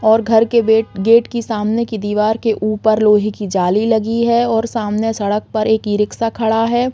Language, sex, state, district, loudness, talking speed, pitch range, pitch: Hindi, female, Bihar, East Champaran, -15 LUFS, 205 wpm, 215-230 Hz, 220 Hz